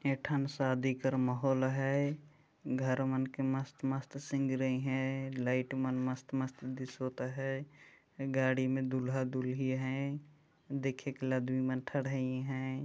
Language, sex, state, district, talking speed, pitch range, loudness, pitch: Chhattisgarhi, male, Chhattisgarh, Jashpur, 130 wpm, 130-135 Hz, -35 LUFS, 130 Hz